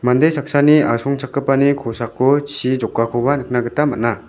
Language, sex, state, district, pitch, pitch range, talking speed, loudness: Garo, male, Meghalaya, West Garo Hills, 135 Hz, 120-145 Hz, 125 wpm, -17 LUFS